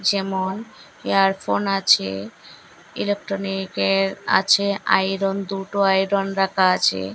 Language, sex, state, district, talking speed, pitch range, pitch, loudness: Bengali, female, Assam, Hailakandi, 85 wpm, 185-195 Hz, 195 Hz, -20 LUFS